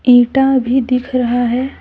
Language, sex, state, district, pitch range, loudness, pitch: Hindi, female, Jharkhand, Deoghar, 245-265 Hz, -14 LUFS, 250 Hz